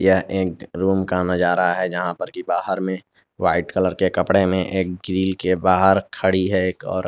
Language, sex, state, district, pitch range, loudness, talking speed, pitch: Hindi, male, Jharkhand, Garhwa, 90-95 Hz, -20 LUFS, 205 wpm, 95 Hz